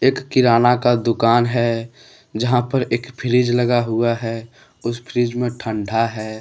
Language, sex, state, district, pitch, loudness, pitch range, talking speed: Hindi, male, Jharkhand, Deoghar, 120 Hz, -19 LUFS, 115-125 Hz, 160 wpm